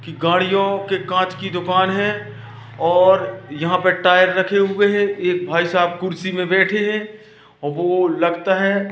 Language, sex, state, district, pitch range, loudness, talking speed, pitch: Hindi, male, Madhya Pradesh, Katni, 175-195 Hz, -18 LUFS, 160 wpm, 185 Hz